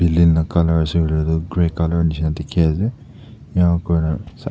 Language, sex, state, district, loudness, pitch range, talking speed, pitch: Nagamese, male, Nagaland, Dimapur, -18 LUFS, 80-90 Hz, 160 wpm, 85 Hz